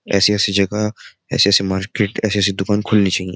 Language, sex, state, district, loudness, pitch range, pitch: Hindi, male, Uttar Pradesh, Jyotiba Phule Nagar, -17 LUFS, 95-105 Hz, 100 Hz